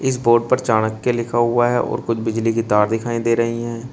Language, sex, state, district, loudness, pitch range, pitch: Hindi, male, Uttar Pradesh, Shamli, -18 LUFS, 115-120 Hz, 115 Hz